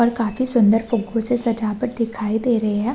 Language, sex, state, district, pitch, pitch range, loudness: Hindi, female, Chhattisgarh, Rajnandgaon, 230 Hz, 220-240 Hz, -18 LUFS